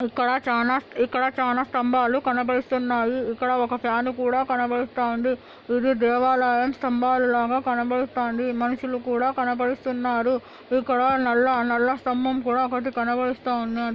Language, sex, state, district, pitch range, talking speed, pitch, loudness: Telugu, female, Andhra Pradesh, Anantapur, 245-255 Hz, 105 wpm, 250 Hz, -23 LUFS